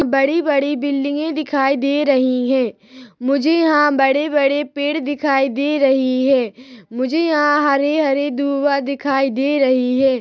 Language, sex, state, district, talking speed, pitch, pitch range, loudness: Hindi, female, Chhattisgarh, Rajnandgaon, 130 wpm, 275 Hz, 265-290 Hz, -17 LUFS